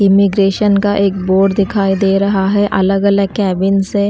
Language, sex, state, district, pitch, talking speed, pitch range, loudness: Hindi, female, Delhi, New Delhi, 195 Hz, 175 wpm, 195-200 Hz, -13 LUFS